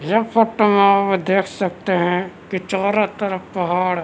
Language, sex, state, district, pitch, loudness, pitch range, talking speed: Hindi, male, Chhattisgarh, Balrampur, 195 Hz, -18 LUFS, 180-205 Hz, 180 wpm